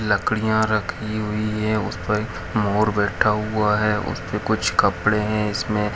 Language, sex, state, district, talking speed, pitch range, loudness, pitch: Hindi, male, Chhattisgarh, Bilaspur, 190 wpm, 105-110 Hz, -21 LUFS, 105 Hz